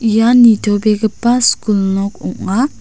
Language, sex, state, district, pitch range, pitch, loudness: Garo, female, Meghalaya, South Garo Hills, 205-235 Hz, 220 Hz, -13 LUFS